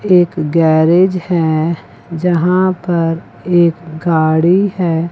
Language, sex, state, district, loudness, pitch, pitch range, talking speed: Hindi, female, Chandigarh, Chandigarh, -13 LUFS, 170 Hz, 160-180 Hz, 95 wpm